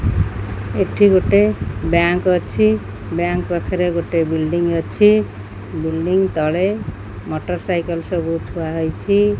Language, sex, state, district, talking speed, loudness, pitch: Odia, female, Odisha, Khordha, 95 wpm, -18 LUFS, 165 Hz